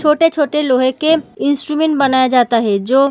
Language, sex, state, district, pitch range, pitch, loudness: Hindi, female, Bihar, Samastipur, 255-300 Hz, 280 Hz, -14 LUFS